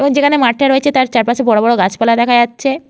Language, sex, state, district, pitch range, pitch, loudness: Bengali, female, West Bengal, Jhargram, 235-275 Hz, 245 Hz, -12 LUFS